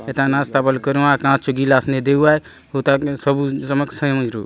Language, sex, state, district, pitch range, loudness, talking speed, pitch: Halbi, male, Chhattisgarh, Bastar, 135-140 Hz, -17 LUFS, 190 wpm, 140 Hz